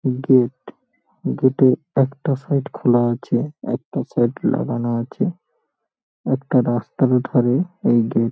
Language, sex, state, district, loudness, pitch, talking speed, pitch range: Bengali, male, West Bengal, Paschim Medinipur, -20 LUFS, 130 Hz, 115 wpm, 120-140 Hz